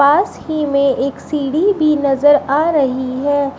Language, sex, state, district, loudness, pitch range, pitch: Hindi, female, Uttar Pradesh, Shamli, -15 LUFS, 275-300 Hz, 285 Hz